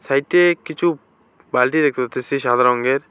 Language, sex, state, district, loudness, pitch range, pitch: Bengali, male, West Bengal, Alipurduar, -18 LUFS, 125-170 Hz, 140 Hz